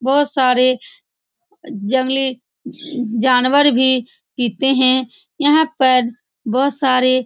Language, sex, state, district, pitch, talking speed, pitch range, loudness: Hindi, female, Bihar, Saran, 260 Hz, 110 wpm, 255-285 Hz, -16 LUFS